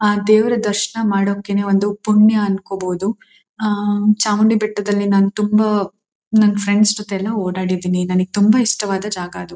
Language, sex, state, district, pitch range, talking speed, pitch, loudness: Kannada, female, Karnataka, Mysore, 195-215 Hz, 140 wpm, 205 Hz, -17 LUFS